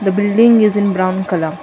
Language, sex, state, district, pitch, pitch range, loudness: English, female, Karnataka, Bangalore, 200 Hz, 185-205 Hz, -13 LUFS